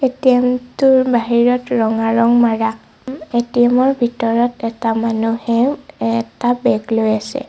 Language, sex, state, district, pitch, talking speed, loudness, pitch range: Assamese, female, Assam, Sonitpur, 240 Hz, 130 wpm, -16 LUFS, 230-250 Hz